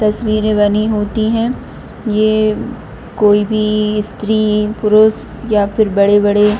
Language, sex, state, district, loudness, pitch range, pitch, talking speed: Hindi, female, Jharkhand, Jamtara, -14 LUFS, 210-215 Hz, 215 Hz, 120 wpm